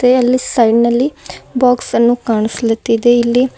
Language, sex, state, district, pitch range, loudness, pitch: Kannada, female, Karnataka, Bidar, 230-250 Hz, -13 LUFS, 240 Hz